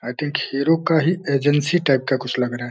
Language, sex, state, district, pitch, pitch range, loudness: Hindi, male, Uttar Pradesh, Deoria, 140 Hz, 125-160 Hz, -20 LUFS